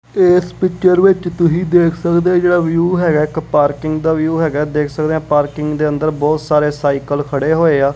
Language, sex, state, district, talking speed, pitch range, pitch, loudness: Punjabi, female, Punjab, Kapurthala, 195 wpm, 150-175 Hz, 155 Hz, -14 LUFS